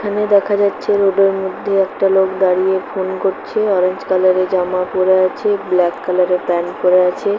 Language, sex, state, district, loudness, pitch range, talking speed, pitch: Bengali, female, West Bengal, Paschim Medinipur, -15 LUFS, 185-200 Hz, 220 wpm, 190 Hz